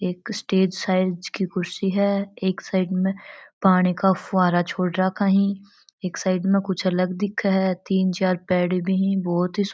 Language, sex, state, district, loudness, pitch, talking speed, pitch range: Marwari, female, Rajasthan, Churu, -22 LUFS, 190 Hz, 190 wpm, 185-195 Hz